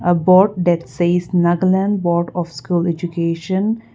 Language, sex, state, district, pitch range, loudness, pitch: English, female, Nagaland, Kohima, 170-185 Hz, -17 LUFS, 175 Hz